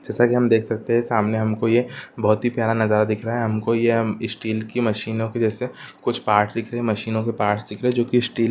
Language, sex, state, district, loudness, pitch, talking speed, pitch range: Hindi, female, Uttarakhand, Uttarkashi, -21 LUFS, 115 Hz, 275 wpm, 110-120 Hz